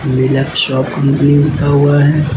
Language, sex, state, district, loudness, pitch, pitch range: Hindi, male, Uttar Pradesh, Lucknow, -12 LUFS, 145 Hz, 135-145 Hz